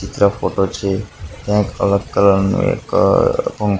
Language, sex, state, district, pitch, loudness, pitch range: Gujarati, male, Gujarat, Gandhinagar, 100 Hz, -16 LUFS, 95-105 Hz